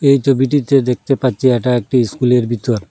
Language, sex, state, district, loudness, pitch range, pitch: Bengali, male, Assam, Hailakandi, -15 LUFS, 120-135 Hz, 130 Hz